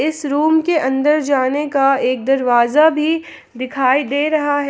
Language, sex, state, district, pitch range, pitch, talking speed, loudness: Hindi, female, Jharkhand, Palamu, 265-305 Hz, 285 Hz, 165 wpm, -16 LUFS